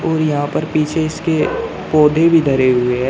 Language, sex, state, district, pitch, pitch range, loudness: Hindi, male, Uttar Pradesh, Shamli, 155 Hz, 140-160 Hz, -15 LUFS